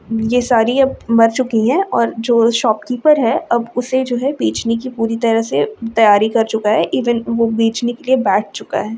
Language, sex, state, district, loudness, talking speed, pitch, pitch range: Hindi, female, Uttar Pradesh, Varanasi, -15 LUFS, 215 wpm, 230 Hz, 220-245 Hz